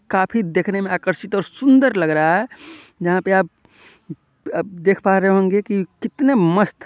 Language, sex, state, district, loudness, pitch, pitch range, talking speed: Hindi, male, Bihar, East Champaran, -18 LUFS, 195 Hz, 180-215 Hz, 165 wpm